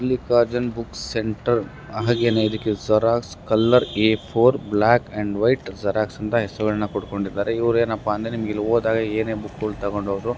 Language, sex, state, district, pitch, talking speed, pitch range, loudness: Kannada, male, Karnataka, Gulbarga, 110 Hz, 140 wpm, 105-115 Hz, -21 LUFS